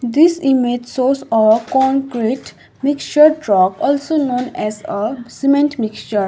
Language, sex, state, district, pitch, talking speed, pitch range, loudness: English, female, Sikkim, Gangtok, 260 Hz, 125 wpm, 225-280 Hz, -16 LUFS